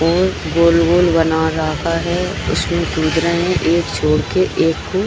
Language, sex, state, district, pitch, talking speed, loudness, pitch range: Hindi, female, Jharkhand, Sahebganj, 165 Hz, 200 wpm, -16 LUFS, 150-170 Hz